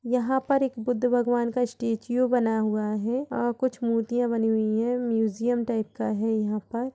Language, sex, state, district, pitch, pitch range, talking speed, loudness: Hindi, female, Uttar Pradesh, Jalaun, 235 Hz, 220-245 Hz, 200 wpm, -26 LUFS